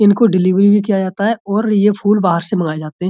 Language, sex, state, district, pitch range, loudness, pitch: Hindi, male, Uttar Pradesh, Budaun, 185-210 Hz, -14 LUFS, 200 Hz